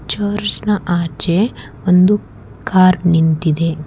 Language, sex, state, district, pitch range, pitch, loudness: Kannada, female, Karnataka, Bangalore, 165-205 Hz, 180 Hz, -15 LUFS